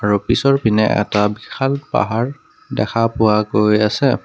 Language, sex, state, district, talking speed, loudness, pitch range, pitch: Assamese, male, Assam, Kamrup Metropolitan, 140 wpm, -17 LUFS, 105-135 Hz, 110 Hz